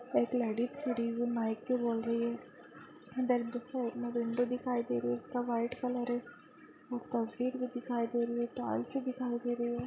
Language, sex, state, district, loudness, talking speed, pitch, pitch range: Hindi, female, Bihar, Saharsa, -35 LUFS, 205 wpm, 240 Hz, 235-250 Hz